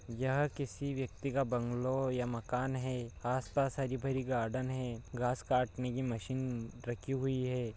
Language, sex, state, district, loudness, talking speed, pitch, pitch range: Hindi, male, Bihar, Bhagalpur, -36 LUFS, 145 wpm, 125 Hz, 120-130 Hz